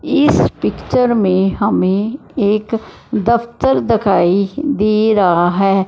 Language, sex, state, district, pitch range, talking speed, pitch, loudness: Hindi, female, Punjab, Fazilka, 195-235 Hz, 100 wpm, 215 Hz, -15 LUFS